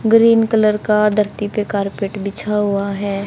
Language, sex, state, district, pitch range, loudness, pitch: Hindi, female, Haryana, Charkhi Dadri, 200-215 Hz, -17 LUFS, 210 Hz